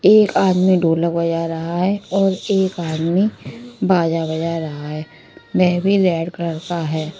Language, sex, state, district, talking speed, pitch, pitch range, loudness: Hindi, female, Punjab, Kapurthala, 160 wpm, 170 Hz, 165-190 Hz, -18 LUFS